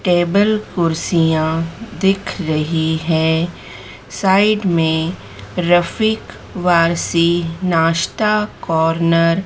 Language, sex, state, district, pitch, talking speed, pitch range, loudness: Hindi, female, Madhya Pradesh, Dhar, 170 Hz, 75 wpm, 160-185 Hz, -16 LUFS